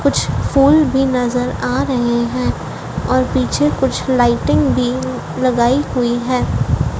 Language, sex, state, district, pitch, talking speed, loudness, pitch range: Hindi, female, Madhya Pradesh, Dhar, 245 Hz, 130 wpm, -16 LUFS, 235-260 Hz